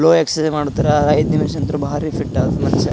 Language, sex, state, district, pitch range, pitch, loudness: Kannada, male, Karnataka, Gulbarga, 150-160 Hz, 155 Hz, -17 LUFS